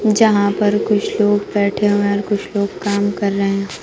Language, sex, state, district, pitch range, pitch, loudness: Hindi, female, Bihar, Kaimur, 200-210 Hz, 205 Hz, -17 LUFS